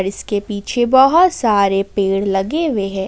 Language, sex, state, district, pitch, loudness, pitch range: Hindi, female, Jharkhand, Ranchi, 200 Hz, -15 LUFS, 195-250 Hz